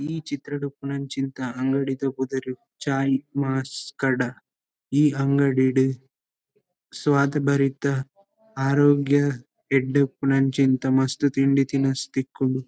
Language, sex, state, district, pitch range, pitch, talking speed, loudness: Tulu, male, Karnataka, Dakshina Kannada, 135-140 Hz, 135 Hz, 85 wpm, -23 LUFS